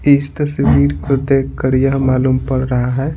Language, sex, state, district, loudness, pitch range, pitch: Hindi, male, Bihar, Patna, -15 LUFS, 130-140 Hz, 130 Hz